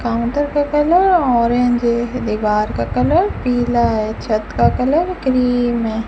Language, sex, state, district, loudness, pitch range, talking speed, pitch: Hindi, female, Rajasthan, Bikaner, -16 LUFS, 225-265 Hz, 150 wpm, 240 Hz